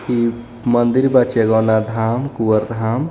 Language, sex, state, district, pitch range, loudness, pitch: Bhojpuri, male, Jharkhand, Palamu, 110-125 Hz, -17 LUFS, 120 Hz